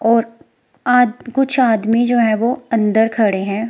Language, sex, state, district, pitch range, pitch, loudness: Hindi, female, Himachal Pradesh, Shimla, 220-245 Hz, 230 Hz, -16 LUFS